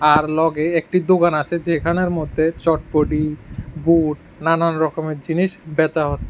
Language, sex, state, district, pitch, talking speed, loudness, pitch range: Bengali, male, Tripura, West Tripura, 160 Hz, 135 wpm, -19 LUFS, 150-170 Hz